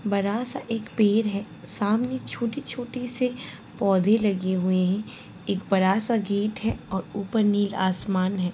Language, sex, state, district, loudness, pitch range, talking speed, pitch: Hindi, female, Bihar, Sitamarhi, -25 LUFS, 190-230 Hz, 155 wpm, 205 Hz